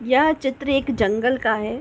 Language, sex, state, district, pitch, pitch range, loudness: Hindi, female, Uttar Pradesh, Ghazipur, 255 Hz, 220-275 Hz, -21 LUFS